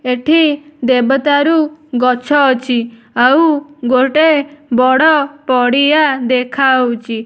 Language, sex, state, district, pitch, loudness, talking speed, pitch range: Odia, female, Odisha, Nuapada, 270 Hz, -13 LUFS, 75 wpm, 250-295 Hz